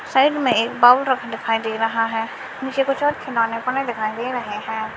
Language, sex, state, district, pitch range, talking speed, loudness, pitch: Hindi, female, West Bengal, Dakshin Dinajpur, 225-265 Hz, 195 wpm, -20 LUFS, 240 Hz